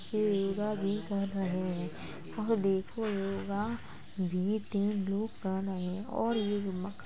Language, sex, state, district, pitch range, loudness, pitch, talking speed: Hindi, female, Uttar Pradesh, Jalaun, 190-210 Hz, -33 LUFS, 200 Hz, 85 wpm